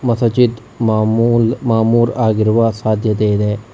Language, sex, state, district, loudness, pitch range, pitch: Kannada, male, Karnataka, Bangalore, -15 LUFS, 110-115 Hz, 115 Hz